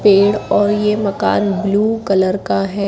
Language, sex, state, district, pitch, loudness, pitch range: Hindi, female, Madhya Pradesh, Katni, 200 Hz, -15 LUFS, 195-210 Hz